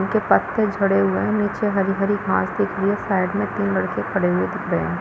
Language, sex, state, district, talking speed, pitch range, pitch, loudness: Hindi, female, Chhattisgarh, Balrampur, 240 wpm, 190-205 Hz, 195 Hz, -21 LUFS